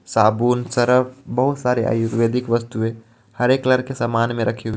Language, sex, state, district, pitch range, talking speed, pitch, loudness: Hindi, male, Jharkhand, Ranchi, 115-125 Hz, 150 wpm, 120 Hz, -19 LUFS